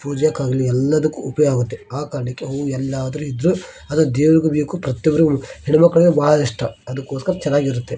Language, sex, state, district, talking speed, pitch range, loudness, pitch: Kannada, male, Karnataka, Dharwad, 160 wpm, 135-155 Hz, -18 LUFS, 145 Hz